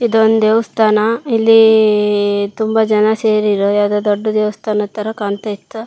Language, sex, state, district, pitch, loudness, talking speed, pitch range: Kannada, female, Karnataka, Shimoga, 215 Hz, -14 LUFS, 125 wpm, 210-220 Hz